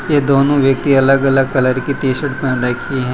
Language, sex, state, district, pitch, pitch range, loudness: Hindi, male, Gujarat, Valsad, 135 Hz, 130-140 Hz, -14 LUFS